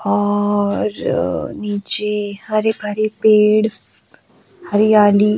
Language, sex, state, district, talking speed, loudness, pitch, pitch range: Hindi, female, Goa, North and South Goa, 65 wpm, -17 LUFS, 210 Hz, 205-215 Hz